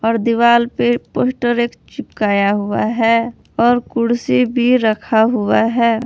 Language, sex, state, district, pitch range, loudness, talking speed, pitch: Hindi, female, Jharkhand, Palamu, 225-240 Hz, -15 LUFS, 140 wpm, 235 Hz